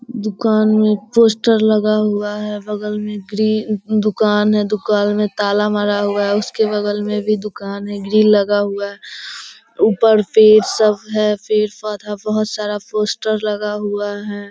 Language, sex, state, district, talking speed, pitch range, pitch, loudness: Hindi, female, Bihar, Sitamarhi, 155 wpm, 205-215 Hz, 210 Hz, -16 LUFS